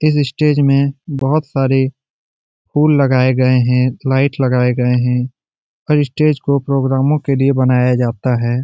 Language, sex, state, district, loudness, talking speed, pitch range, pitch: Hindi, male, Bihar, Jamui, -15 LUFS, 160 wpm, 125-145 Hz, 135 Hz